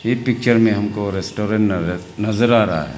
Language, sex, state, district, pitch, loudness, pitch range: Hindi, male, Arunachal Pradesh, Lower Dibang Valley, 105 Hz, -18 LUFS, 95-115 Hz